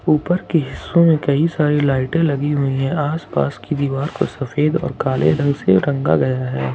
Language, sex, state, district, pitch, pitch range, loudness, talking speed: Hindi, male, Jharkhand, Ranchi, 145 Hz, 130-155 Hz, -18 LUFS, 215 wpm